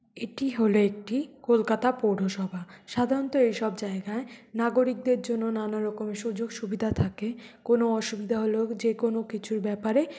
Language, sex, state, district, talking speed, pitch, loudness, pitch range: Bengali, female, West Bengal, North 24 Parganas, 125 wpm, 225 Hz, -28 LUFS, 215-235 Hz